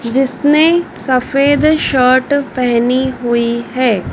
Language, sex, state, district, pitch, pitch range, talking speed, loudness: Hindi, female, Madhya Pradesh, Dhar, 260 Hz, 245-285 Hz, 85 wpm, -13 LUFS